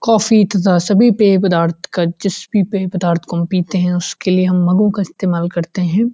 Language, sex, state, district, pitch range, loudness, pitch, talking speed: Hindi, male, Uttarakhand, Uttarkashi, 175-205 Hz, -15 LUFS, 185 Hz, 245 wpm